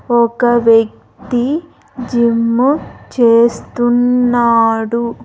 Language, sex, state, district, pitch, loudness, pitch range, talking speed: Telugu, female, Andhra Pradesh, Sri Satya Sai, 240 Hz, -13 LUFS, 230-245 Hz, 45 wpm